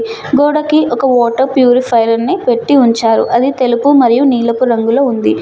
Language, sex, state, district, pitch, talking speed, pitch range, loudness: Telugu, female, Telangana, Mahabubabad, 250 Hz, 145 wpm, 235-275 Hz, -11 LUFS